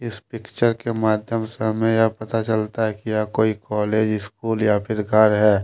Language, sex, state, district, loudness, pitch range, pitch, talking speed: Hindi, male, Jharkhand, Deoghar, -21 LUFS, 105-115 Hz, 110 Hz, 200 wpm